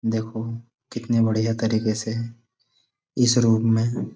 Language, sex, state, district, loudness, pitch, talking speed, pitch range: Hindi, male, Uttar Pradesh, Budaun, -22 LUFS, 115 Hz, 115 wpm, 110-120 Hz